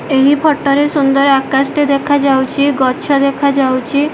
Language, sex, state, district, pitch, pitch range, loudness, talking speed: Odia, female, Odisha, Malkangiri, 280 Hz, 270-285 Hz, -12 LUFS, 130 wpm